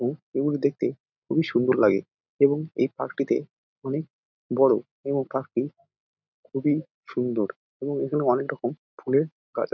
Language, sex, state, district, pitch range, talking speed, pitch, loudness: Bengali, male, West Bengal, Dakshin Dinajpur, 130-150 Hz, 155 wpm, 140 Hz, -26 LUFS